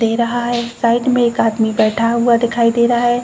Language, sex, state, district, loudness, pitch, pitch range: Hindi, female, Uttar Pradesh, Jalaun, -15 LUFS, 235 Hz, 230-240 Hz